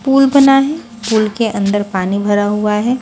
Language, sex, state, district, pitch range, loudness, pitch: Hindi, female, Haryana, Charkhi Dadri, 205-270 Hz, -14 LUFS, 220 Hz